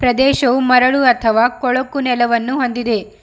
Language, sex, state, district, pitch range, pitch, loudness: Kannada, female, Karnataka, Bidar, 240-260 Hz, 250 Hz, -15 LUFS